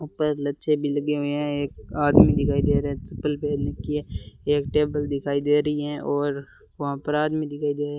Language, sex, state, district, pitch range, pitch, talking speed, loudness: Hindi, male, Rajasthan, Bikaner, 145-150 Hz, 145 Hz, 225 wpm, -24 LUFS